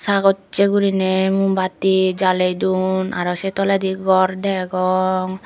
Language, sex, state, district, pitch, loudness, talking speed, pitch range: Chakma, female, Tripura, Dhalai, 190 Hz, -18 LUFS, 110 wpm, 185-195 Hz